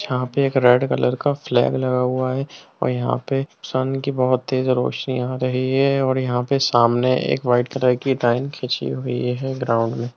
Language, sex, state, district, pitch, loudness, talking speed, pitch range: Hindi, male, Bihar, Jamui, 130 Hz, -20 LUFS, 205 wpm, 125-135 Hz